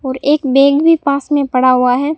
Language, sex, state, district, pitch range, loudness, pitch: Hindi, male, Rajasthan, Bikaner, 260-290 Hz, -12 LUFS, 280 Hz